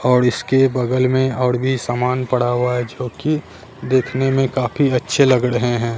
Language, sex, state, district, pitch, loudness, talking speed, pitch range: Hindi, male, Bihar, Katihar, 125 Hz, -18 LUFS, 190 wpm, 125-130 Hz